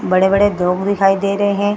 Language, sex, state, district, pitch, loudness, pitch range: Hindi, female, Bihar, Gaya, 200 Hz, -15 LUFS, 190-200 Hz